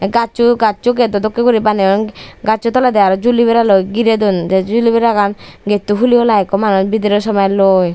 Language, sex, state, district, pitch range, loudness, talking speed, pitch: Chakma, female, Tripura, Dhalai, 195-235 Hz, -13 LUFS, 150 wpm, 215 Hz